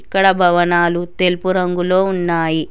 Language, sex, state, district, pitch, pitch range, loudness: Telugu, female, Telangana, Hyderabad, 180 Hz, 175-185 Hz, -15 LUFS